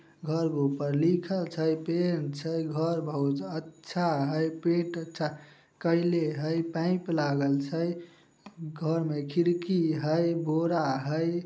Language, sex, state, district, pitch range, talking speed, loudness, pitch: Maithili, male, Bihar, Samastipur, 155-170 Hz, 125 wpm, -29 LUFS, 165 Hz